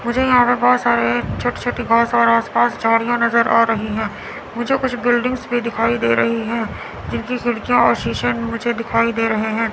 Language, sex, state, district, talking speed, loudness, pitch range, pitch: Hindi, female, Chandigarh, Chandigarh, 205 wpm, -17 LUFS, 220-240 Hz, 230 Hz